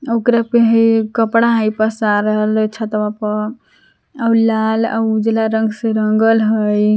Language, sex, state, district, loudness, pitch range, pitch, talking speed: Magahi, female, Jharkhand, Palamu, -15 LUFS, 215-225 Hz, 220 Hz, 140 wpm